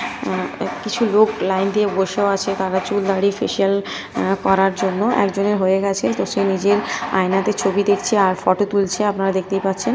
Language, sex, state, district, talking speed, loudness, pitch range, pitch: Bengali, female, West Bengal, North 24 Parganas, 175 wpm, -19 LUFS, 190-205 Hz, 195 Hz